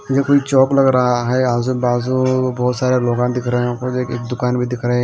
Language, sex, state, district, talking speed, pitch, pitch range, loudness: Hindi, male, Himachal Pradesh, Shimla, 240 wpm, 125 Hz, 125-130 Hz, -17 LUFS